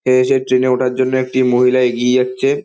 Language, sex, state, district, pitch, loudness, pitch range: Bengali, male, West Bengal, Dakshin Dinajpur, 130 Hz, -14 LUFS, 125-130 Hz